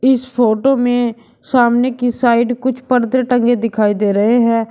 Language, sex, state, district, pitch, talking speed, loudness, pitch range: Hindi, male, Uttar Pradesh, Shamli, 245 Hz, 165 wpm, -14 LUFS, 230-250 Hz